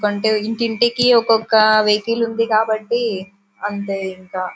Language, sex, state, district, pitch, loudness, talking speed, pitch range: Telugu, female, Telangana, Karimnagar, 215 Hz, -17 LUFS, 120 wpm, 205-230 Hz